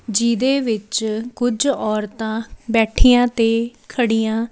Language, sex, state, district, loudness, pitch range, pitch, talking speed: Punjabi, female, Chandigarh, Chandigarh, -19 LUFS, 220-245 Hz, 230 Hz, 95 wpm